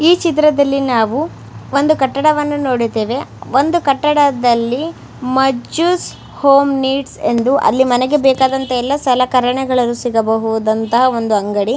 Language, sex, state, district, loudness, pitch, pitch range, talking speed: Kannada, female, Karnataka, Mysore, -14 LUFS, 265 Hz, 245-285 Hz, 100 wpm